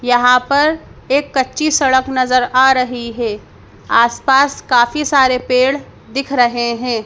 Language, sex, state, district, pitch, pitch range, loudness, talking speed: Hindi, female, Madhya Pradesh, Bhopal, 255 Hz, 245-275 Hz, -14 LUFS, 145 wpm